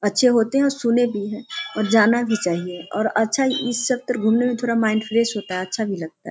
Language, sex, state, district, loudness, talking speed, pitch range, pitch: Hindi, female, Bihar, Sitamarhi, -20 LUFS, 240 wpm, 210-245 Hz, 225 Hz